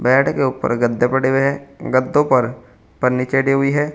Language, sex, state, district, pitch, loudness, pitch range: Hindi, male, Uttar Pradesh, Saharanpur, 130 Hz, -17 LUFS, 125-135 Hz